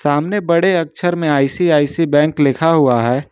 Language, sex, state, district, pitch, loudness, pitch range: Hindi, male, Jharkhand, Ranchi, 155 Hz, -15 LUFS, 145-170 Hz